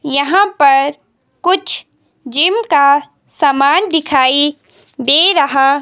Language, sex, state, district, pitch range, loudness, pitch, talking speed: Hindi, female, Himachal Pradesh, Shimla, 275-345 Hz, -12 LUFS, 290 Hz, 95 wpm